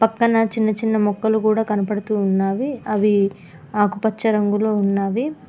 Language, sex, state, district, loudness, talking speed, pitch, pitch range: Telugu, female, Telangana, Mahabubabad, -19 LUFS, 120 wpm, 210 Hz, 205-220 Hz